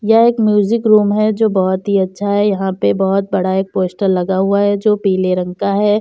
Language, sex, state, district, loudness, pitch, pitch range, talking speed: Hindi, female, Uttar Pradesh, Jyotiba Phule Nagar, -14 LUFS, 200 Hz, 190-210 Hz, 240 wpm